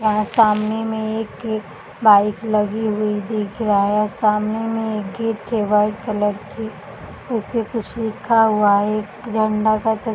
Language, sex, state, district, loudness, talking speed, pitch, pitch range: Hindi, female, Chhattisgarh, Balrampur, -19 LUFS, 170 wpm, 215 Hz, 210-220 Hz